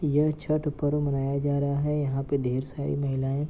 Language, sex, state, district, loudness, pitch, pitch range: Hindi, male, Bihar, Gopalganj, -27 LUFS, 140 Hz, 140-150 Hz